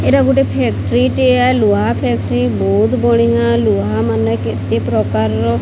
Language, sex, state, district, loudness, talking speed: Odia, female, Odisha, Sambalpur, -14 LUFS, 140 wpm